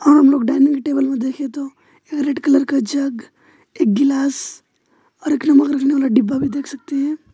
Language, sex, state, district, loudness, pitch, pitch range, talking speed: Hindi, male, West Bengal, Alipurduar, -17 LUFS, 280 Hz, 275-290 Hz, 195 wpm